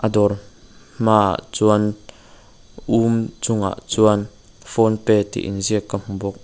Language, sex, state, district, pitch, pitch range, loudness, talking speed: Mizo, male, Mizoram, Aizawl, 105 Hz, 100-110 Hz, -19 LUFS, 120 wpm